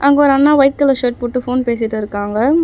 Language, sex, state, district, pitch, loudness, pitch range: Tamil, female, Tamil Nadu, Chennai, 255 Hz, -14 LUFS, 235-280 Hz